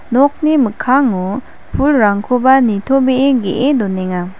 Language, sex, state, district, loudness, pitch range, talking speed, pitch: Garo, female, Meghalaya, West Garo Hills, -13 LUFS, 205-270 Hz, 80 wpm, 260 Hz